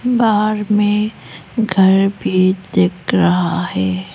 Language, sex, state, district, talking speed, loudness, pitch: Hindi, female, Arunachal Pradesh, Lower Dibang Valley, 100 wpm, -15 LUFS, 190 Hz